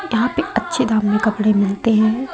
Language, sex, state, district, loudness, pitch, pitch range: Hindi, female, Madhya Pradesh, Umaria, -17 LUFS, 225 Hz, 215-250 Hz